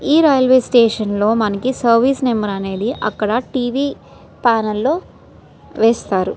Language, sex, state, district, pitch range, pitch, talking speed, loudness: Telugu, female, Andhra Pradesh, Srikakulam, 215-260 Hz, 230 Hz, 115 wpm, -16 LUFS